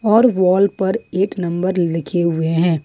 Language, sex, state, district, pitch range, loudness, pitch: Hindi, female, Jharkhand, Ranchi, 170-195 Hz, -17 LUFS, 180 Hz